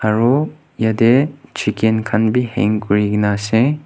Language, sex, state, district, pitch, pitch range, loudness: Nagamese, male, Nagaland, Kohima, 110 Hz, 105-130 Hz, -17 LUFS